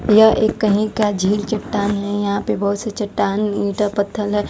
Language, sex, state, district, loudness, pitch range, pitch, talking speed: Hindi, female, Bihar, West Champaran, -18 LUFS, 200-210 Hz, 205 Hz, 185 wpm